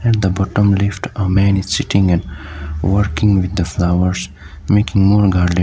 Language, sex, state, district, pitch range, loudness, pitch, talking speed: English, male, Sikkim, Gangtok, 90-100 Hz, -15 LUFS, 95 Hz, 160 wpm